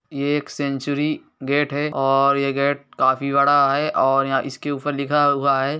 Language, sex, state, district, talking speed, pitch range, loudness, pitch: Hindi, male, Uttar Pradesh, Etah, 185 wpm, 135-145 Hz, -20 LUFS, 140 Hz